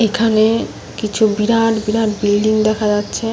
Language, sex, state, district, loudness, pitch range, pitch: Bengali, female, West Bengal, Paschim Medinipur, -16 LUFS, 210-225 Hz, 215 Hz